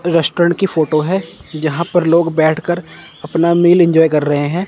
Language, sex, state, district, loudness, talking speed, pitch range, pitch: Hindi, male, Chandigarh, Chandigarh, -14 LUFS, 180 wpm, 155-175 Hz, 165 Hz